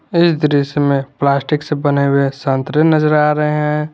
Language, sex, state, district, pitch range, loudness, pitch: Hindi, male, Jharkhand, Garhwa, 140-150 Hz, -15 LUFS, 150 Hz